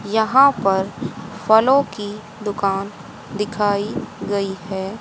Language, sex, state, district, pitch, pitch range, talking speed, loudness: Hindi, female, Haryana, Rohtak, 205 Hz, 200-220 Hz, 95 wpm, -19 LUFS